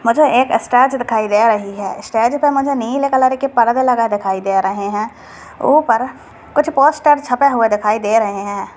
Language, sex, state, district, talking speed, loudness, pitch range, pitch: Hindi, female, Bihar, Purnia, 190 wpm, -15 LUFS, 210-275 Hz, 235 Hz